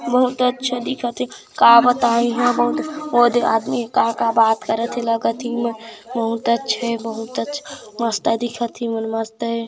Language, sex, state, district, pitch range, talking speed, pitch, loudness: Hindi, female, Chhattisgarh, Kabirdham, 230-245 Hz, 200 wpm, 235 Hz, -19 LUFS